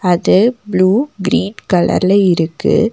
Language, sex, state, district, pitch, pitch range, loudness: Tamil, female, Tamil Nadu, Nilgiris, 195 Hz, 185-225 Hz, -14 LUFS